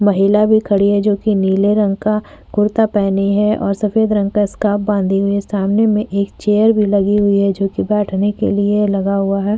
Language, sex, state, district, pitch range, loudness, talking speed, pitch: Hindi, female, Uttar Pradesh, Jyotiba Phule Nagar, 200-210 Hz, -15 LUFS, 215 wpm, 205 Hz